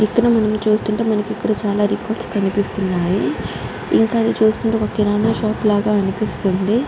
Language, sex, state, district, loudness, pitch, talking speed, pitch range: Telugu, female, Andhra Pradesh, Guntur, -18 LUFS, 215 Hz, 120 wpm, 205-220 Hz